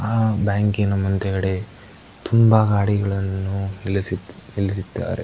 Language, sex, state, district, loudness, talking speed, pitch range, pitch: Kannada, male, Karnataka, Mysore, -21 LUFS, 90 wpm, 95-110 Hz, 100 Hz